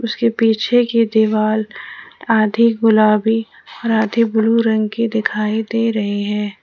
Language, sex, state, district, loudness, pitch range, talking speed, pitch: Hindi, female, Jharkhand, Ranchi, -16 LUFS, 215-230 Hz, 135 wpm, 220 Hz